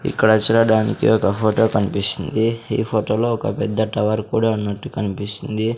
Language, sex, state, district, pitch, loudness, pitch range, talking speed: Telugu, male, Andhra Pradesh, Sri Satya Sai, 110 Hz, -19 LUFS, 105-115 Hz, 135 wpm